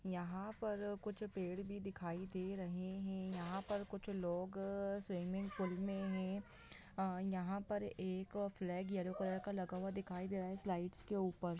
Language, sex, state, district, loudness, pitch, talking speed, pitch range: Hindi, female, Bihar, Saran, -44 LUFS, 190 Hz, 175 wpm, 185-200 Hz